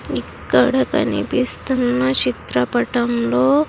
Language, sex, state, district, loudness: Telugu, female, Andhra Pradesh, Sri Satya Sai, -18 LUFS